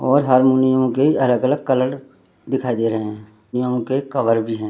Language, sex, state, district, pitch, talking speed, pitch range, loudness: Hindi, male, Uttarakhand, Tehri Garhwal, 125 Hz, 190 wpm, 115-130 Hz, -18 LUFS